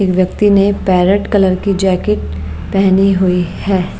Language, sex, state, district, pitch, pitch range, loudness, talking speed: Hindi, female, Maharashtra, Mumbai Suburban, 190 Hz, 180-195 Hz, -13 LUFS, 150 wpm